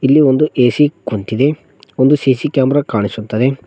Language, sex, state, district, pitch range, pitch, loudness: Kannada, male, Karnataka, Koppal, 115-145 Hz, 130 Hz, -14 LUFS